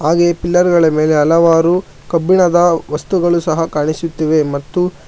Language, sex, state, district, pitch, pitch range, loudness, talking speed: Kannada, male, Karnataka, Bangalore, 165 Hz, 155-175 Hz, -13 LUFS, 120 wpm